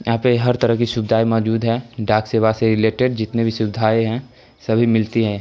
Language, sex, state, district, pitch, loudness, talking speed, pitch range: Hindi, male, Bihar, Samastipur, 115 Hz, -18 LUFS, 210 wpm, 110-120 Hz